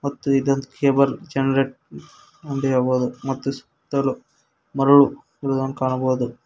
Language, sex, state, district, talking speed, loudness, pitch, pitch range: Kannada, male, Karnataka, Koppal, 100 wpm, -21 LUFS, 135 Hz, 130-140 Hz